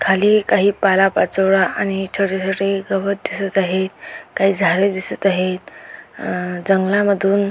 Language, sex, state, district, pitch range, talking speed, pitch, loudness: Marathi, female, Maharashtra, Aurangabad, 190-195 Hz, 120 wpm, 195 Hz, -17 LUFS